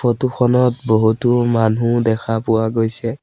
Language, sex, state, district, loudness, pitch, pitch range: Assamese, male, Assam, Sonitpur, -17 LUFS, 115 Hz, 110-120 Hz